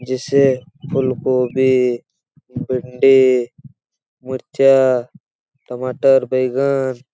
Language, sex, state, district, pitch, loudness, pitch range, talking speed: Hindi, male, Chhattisgarh, Raigarh, 130 Hz, -16 LUFS, 125-135 Hz, 60 wpm